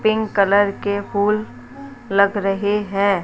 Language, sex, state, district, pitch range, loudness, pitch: Hindi, female, Rajasthan, Jaipur, 200-215 Hz, -19 LUFS, 205 Hz